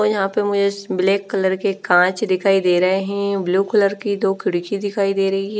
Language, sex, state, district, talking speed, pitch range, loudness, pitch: Hindi, female, Punjab, Fazilka, 225 wpm, 190-200 Hz, -18 LUFS, 195 Hz